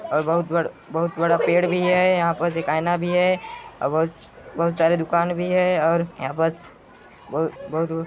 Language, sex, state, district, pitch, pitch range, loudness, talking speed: Hindi, male, Chhattisgarh, Sarguja, 170 Hz, 165-180 Hz, -22 LUFS, 180 wpm